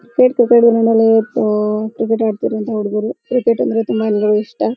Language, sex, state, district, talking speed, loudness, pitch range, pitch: Kannada, female, Karnataka, Dharwad, 140 wpm, -15 LUFS, 215-230 Hz, 225 Hz